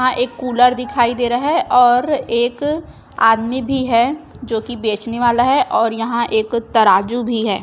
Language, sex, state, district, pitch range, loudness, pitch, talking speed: Hindi, female, Chhattisgarh, Raipur, 230-255 Hz, -16 LUFS, 240 Hz, 180 wpm